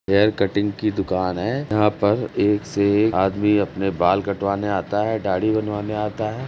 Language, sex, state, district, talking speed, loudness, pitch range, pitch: Hindi, male, Uttar Pradesh, Jalaun, 185 wpm, -21 LUFS, 100-105 Hz, 105 Hz